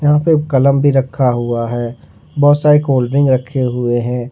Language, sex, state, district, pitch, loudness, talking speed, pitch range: Hindi, male, Jharkhand, Ranchi, 130 Hz, -14 LUFS, 195 wpm, 120-145 Hz